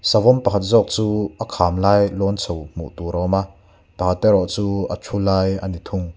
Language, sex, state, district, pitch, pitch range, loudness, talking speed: Mizo, male, Mizoram, Aizawl, 95 Hz, 90-100 Hz, -19 LUFS, 225 wpm